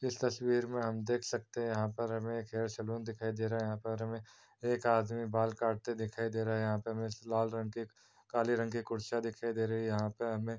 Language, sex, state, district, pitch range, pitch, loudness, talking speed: Hindi, male, Uttar Pradesh, Varanasi, 110-115 Hz, 115 Hz, -36 LUFS, 260 wpm